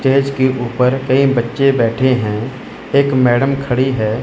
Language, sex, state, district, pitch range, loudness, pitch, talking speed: Hindi, male, Chandigarh, Chandigarh, 120-135 Hz, -15 LUFS, 130 Hz, 155 wpm